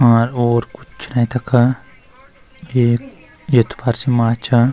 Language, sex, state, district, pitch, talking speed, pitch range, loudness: Garhwali, male, Uttarakhand, Uttarkashi, 120 Hz, 115 wpm, 120-125 Hz, -17 LUFS